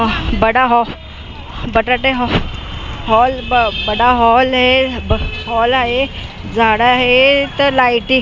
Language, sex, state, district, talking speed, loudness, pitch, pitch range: Marathi, female, Maharashtra, Mumbai Suburban, 90 wpm, -13 LUFS, 245 Hz, 230-260 Hz